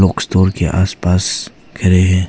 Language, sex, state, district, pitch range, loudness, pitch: Hindi, male, Arunachal Pradesh, Papum Pare, 90-95 Hz, -15 LUFS, 95 Hz